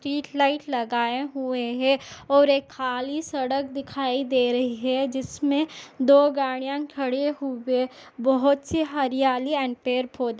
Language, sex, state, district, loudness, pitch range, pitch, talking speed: Hindi, female, Chhattisgarh, Bastar, -24 LUFS, 255-280 Hz, 270 Hz, 140 wpm